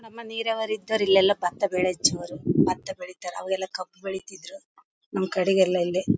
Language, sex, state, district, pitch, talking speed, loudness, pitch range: Kannada, female, Karnataka, Bellary, 190 Hz, 145 wpm, -25 LUFS, 185-220 Hz